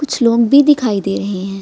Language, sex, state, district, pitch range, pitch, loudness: Hindi, female, Bihar, Gaya, 195-280 Hz, 235 Hz, -13 LUFS